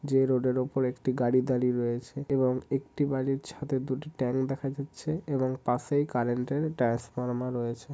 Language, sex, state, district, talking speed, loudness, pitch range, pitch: Bengali, male, West Bengal, Jhargram, 150 wpm, -30 LUFS, 125-140 Hz, 130 Hz